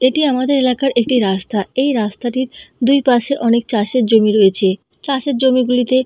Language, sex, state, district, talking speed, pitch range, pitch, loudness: Bengali, female, West Bengal, North 24 Parganas, 160 wpm, 225-265 Hz, 250 Hz, -15 LUFS